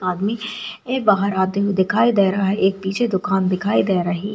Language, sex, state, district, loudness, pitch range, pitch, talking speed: Hindi, female, Uttarakhand, Tehri Garhwal, -19 LUFS, 190-210 Hz, 195 Hz, 220 wpm